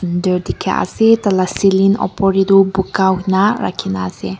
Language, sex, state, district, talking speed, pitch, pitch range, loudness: Nagamese, female, Nagaland, Kohima, 165 wpm, 190 Hz, 180-195 Hz, -15 LUFS